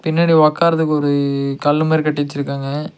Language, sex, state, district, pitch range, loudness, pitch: Tamil, male, Tamil Nadu, Nilgiris, 140-160 Hz, -16 LUFS, 150 Hz